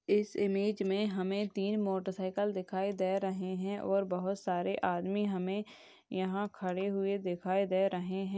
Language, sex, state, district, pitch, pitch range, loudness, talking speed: Hindi, female, Bihar, Madhepura, 195 Hz, 185-200 Hz, -34 LUFS, 165 wpm